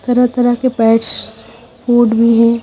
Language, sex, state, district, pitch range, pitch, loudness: Hindi, female, Haryana, Charkhi Dadri, 230-245 Hz, 240 Hz, -12 LUFS